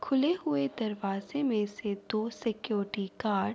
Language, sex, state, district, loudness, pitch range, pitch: Urdu, female, Andhra Pradesh, Anantapur, -32 LUFS, 205-270 Hz, 215 Hz